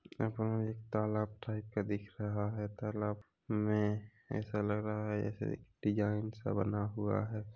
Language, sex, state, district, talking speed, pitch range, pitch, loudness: Hindi, male, Chhattisgarh, Rajnandgaon, 175 wpm, 105-110 Hz, 105 Hz, -37 LUFS